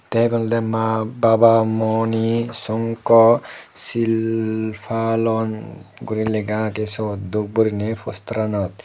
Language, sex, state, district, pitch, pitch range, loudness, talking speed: Chakma, male, Tripura, Dhalai, 110 Hz, 110-115 Hz, -20 LUFS, 95 wpm